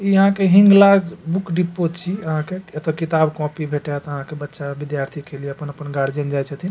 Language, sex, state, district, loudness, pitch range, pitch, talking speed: Maithili, male, Bihar, Supaul, -19 LUFS, 145-185 Hz, 155 Hz, 205 wpm